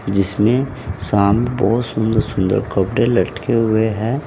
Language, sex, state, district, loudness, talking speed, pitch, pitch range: Hindi, male, Uttar Pradesh, Saharanpur, -17 LUFS, 125 wpm, 110 Hz, 100-120 Hz